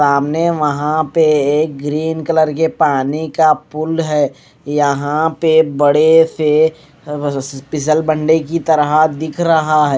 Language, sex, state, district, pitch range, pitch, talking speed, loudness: Hindi, male, Odisha, Malkangiri, 145-160 Hz, 155 Hz, 120 wpm, -14 LUFS